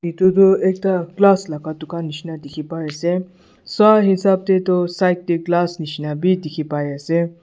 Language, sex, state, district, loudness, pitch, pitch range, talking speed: Nagamese, male, Nagaland, Dimapur, -18 LUFS, 175 Hz, 155-185 Hz, 170 wpm